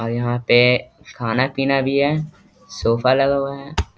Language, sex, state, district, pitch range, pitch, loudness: Hindi, male, Bihar, East Champaran, 120-140 Hz, 135 Hz, -19 LUFS